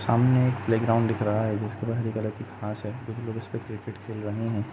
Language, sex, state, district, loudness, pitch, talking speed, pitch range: Hindi, male, Uttar Pradesh, Jalaun, -28 LUFS, 115 Hz, 240 wpm, 105-115 Hz